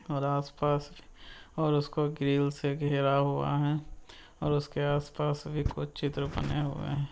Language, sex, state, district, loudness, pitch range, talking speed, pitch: Hindi, male, Bihar, Muzaffarpur, -31 LUFS, 140-145 Hz, 150 wpm, 145 Hz